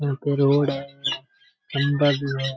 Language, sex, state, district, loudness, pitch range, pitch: Rajasthani, male, Rajasthan, Churu, -23 LUFS, 140-145 Hz, 140 Hz